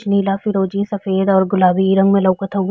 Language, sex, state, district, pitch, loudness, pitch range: Bhojpuri, female, Uttar Pradesh, Ghazipur, 195 Hz, -16 LUFS, 190-200 Hz